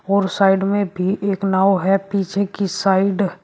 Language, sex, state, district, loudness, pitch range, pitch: Hindi, female, Uttar Pradesh, Shamli, -18 LUFS, 190-200 Hz, 195 Hz